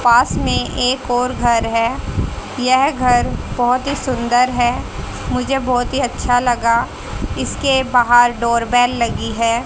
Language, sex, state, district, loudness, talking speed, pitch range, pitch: Hindi, female, Haryana, Jhajjar, -16 LUFS, 145 wpm, 235-255 Hz, 245 Hz